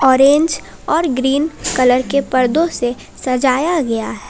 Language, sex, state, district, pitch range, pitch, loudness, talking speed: Hindi, female, Jharkhand, Palamu, 255-305 Hz, 265 Hz, -16 LUFS, 140 wpm